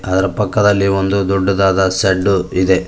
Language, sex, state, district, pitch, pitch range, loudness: Kannada, male, Karnataka, Koppal, 95 Hz, 95-100 Hz, -14 LUFS